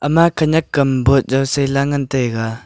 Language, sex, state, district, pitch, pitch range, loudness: Wancho, male, Arunachal Pradesh, Longding, 135 Hz, 130-145 Hz, -16 LUFS